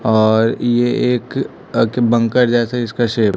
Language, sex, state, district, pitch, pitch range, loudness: Hindi, male, Chhattisgarh, Raipur, 120 Hz, 115-120 Hz, -16 LUFS